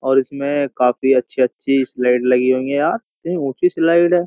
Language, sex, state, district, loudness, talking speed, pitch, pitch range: Hindi, male, Uttar Pradesh, Jyotiba Phule Nagar, -17 LUFS, 180 wpm, 135 Hz, 125-165 Hz